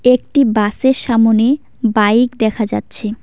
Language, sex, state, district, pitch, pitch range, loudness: Bengali, female, West Bengal, Cooch Behar, 225 Hz, 215-250 Hz, -14 LUFS